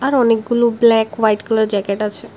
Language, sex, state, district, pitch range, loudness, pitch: Bengali, female, Tripura, West Tripura, 210-235 Hz, -16 LUFS, 220 Hz